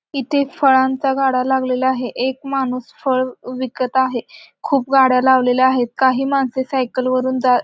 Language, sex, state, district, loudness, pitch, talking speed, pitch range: Marathi, female, Maharashtra, Solapur, -17 LUFS, 260 Hz, 150 wpm, 255-270 Hz